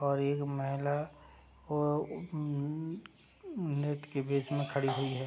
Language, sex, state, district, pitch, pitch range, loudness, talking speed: Hindi, male, Uttar Pradesh, Gorakhpur, 145 Hz, 140-150 Hz, -35 LUFS, 135 wpm